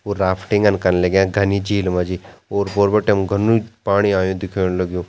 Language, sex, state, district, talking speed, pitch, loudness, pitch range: Garhwali, male, Uttarakhand, Tehri Garhwal, 190 wpm, 100 Hz, -18 LUFS, 95-100 Hz